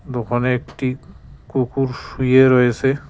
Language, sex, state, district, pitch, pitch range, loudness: Bengali, male, West Bengal, Cooch Behar, 130 Hz, 125-135 Hz, -18 LUFS